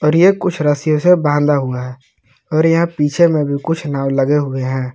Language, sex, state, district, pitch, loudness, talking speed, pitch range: Hindi, male, Jharkhand, Palamu, 150 Hz, -15 LUFS, 220 wpm, 135-165 Hz